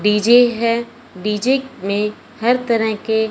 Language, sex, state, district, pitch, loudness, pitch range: Hindi, male, Punjab, Fazilka, 230 Hz, -17 LUFS, 210-240 Hz